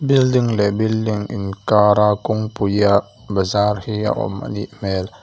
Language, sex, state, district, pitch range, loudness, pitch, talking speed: Mizo, male, Mizoram, Aizawl, 100-110 Hz, -18 LUFS, 105 Hz, 140 wpm